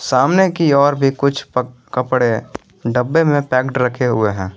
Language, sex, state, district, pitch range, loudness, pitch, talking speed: Hindi, male, Jharkhand, Garhwa, 125-140 Hz, -16 LUFS, 130 Hz, 160 wpm